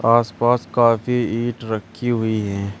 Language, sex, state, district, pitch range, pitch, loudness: Hindi, male, Uttar Pradesh, Shamli, 110-120 Hz, 115 Hz, -20 LUFS